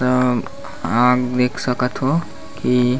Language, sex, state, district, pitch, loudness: Chhattisgarhi, male, Chhattisgarh, Bastar, 125 Hz, -19 LUFS